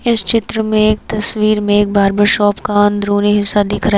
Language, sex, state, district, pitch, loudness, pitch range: Hindi, female, Uttar Pradesh, Lucknow, 205 Hz, -13 LUFS, 205-215 Hz